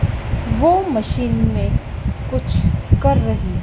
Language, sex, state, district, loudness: Hindi, male, Madhya Pradesh, Dhar, -18 LUFS